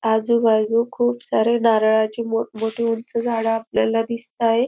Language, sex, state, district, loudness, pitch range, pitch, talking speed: Marathi, female, Maharashtra, Dhule, -20 LUFS, 225-235 Hz, 230 Hz, 130 wpm